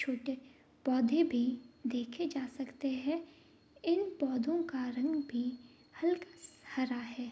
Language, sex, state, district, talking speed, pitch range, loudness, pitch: Hindi, female, Bihar, Bhagalpur, 130 wpm, 250-320 Hz, -36 LUFS, 270 Hz